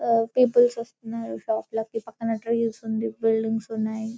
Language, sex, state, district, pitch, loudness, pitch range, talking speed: Telugu, female, Telangana, Karimnagar, 225 Hz, -25 LUFS, 220-230 Hz, 130 wpm